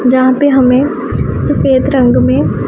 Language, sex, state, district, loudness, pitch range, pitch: Hindi, female, Punjab, Pathankot, -11 LUFS, 255-265 Hz, 260 Hz